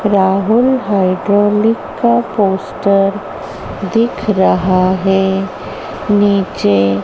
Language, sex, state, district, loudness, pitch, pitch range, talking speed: Hindi, male, Madhya Pradesh, Dhar, -13 LUFS, 195 Hz, 190-210 Hz, 70 wpm